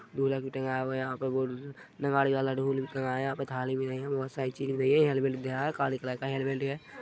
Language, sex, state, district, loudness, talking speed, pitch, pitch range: Hindi, male, Chhattisgarh, Rajnandgaon, -31 LUFS, 290 wpm, 135 Hz, 130-135 Hz